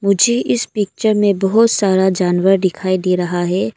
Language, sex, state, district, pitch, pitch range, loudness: Hindi, female, Arunachal Pradesh, Longding, 195 Hz, 185-205 Hz, -15 LUFS